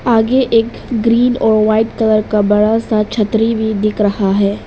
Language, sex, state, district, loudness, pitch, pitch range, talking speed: Hindi, female, Arunachal Pradesh, Papum Pare, -13 LUFS, 220 Hz, 210-230 Hz, 180 wpm